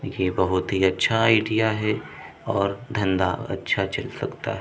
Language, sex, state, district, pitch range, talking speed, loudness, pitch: Hindi, male, Uttar Pradesh, Budaun, 95-110 Hz, 145 wpm, -23 LUFS, 100 Hz